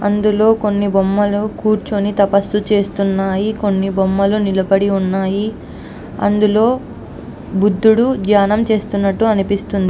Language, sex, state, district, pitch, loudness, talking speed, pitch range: Telugu, female, Andhra Pradesh, Anantapur, 205 Hz, -15 LUFS, 95 wpm, 195-210 Hz